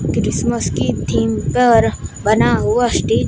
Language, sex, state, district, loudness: Hindi, male, Gujarat, Gandhinagar, -16 LUFS